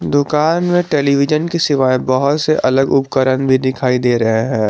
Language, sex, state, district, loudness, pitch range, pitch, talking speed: Hindi, male, Jharkhand, Garhwa, -14 LUFS, 130-150 Hz, 135 Hz, 180 wpm